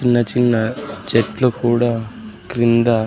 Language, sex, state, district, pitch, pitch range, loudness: Telugu, male, Andhra Pradesh, Sri Satya Sai, 120 Hz, 115-125 Hz, -18 LUFS